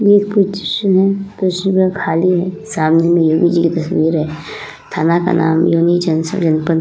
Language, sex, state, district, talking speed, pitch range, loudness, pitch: Hindi, female, Uttar Pradesh, Muzaffarnagar, 150 wpm, 165-190 Hz, -14 LUFS, 170 Hz